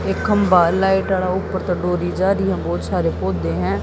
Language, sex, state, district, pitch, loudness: Hindi, female, Haryana, Jhajjar, 180 Hz, -19 LUFS